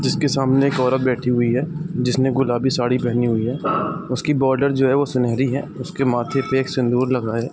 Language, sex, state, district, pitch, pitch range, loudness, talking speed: Hindi, male, Bihar, East Champaran, 130 Hz, 125-135 Hz, -20 LUFS, 215 wpm